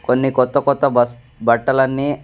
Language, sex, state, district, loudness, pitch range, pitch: Telugu, male, Andhra Pradesh, Sri Satya Sai, -17 LUFS, 120-140 Hz, 130 Hz